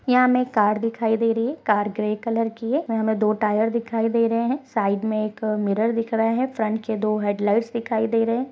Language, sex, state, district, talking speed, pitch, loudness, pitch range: Hindi, female, Chhattisgarh, Bastar, 240 wpm, 225 Hz, -22 LUFS, 215-230 Hz